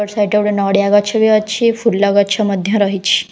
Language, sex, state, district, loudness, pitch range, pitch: Odia, female, Odisha, Khordha, -14 LUFS, 200-215 Hz, 205 Hz